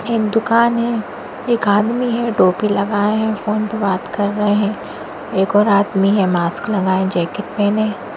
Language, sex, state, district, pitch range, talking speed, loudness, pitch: Hindi, female, Bihar, Madhepura, 195-220 Hz, 170 wpm, -17 LUFS, 205 Hz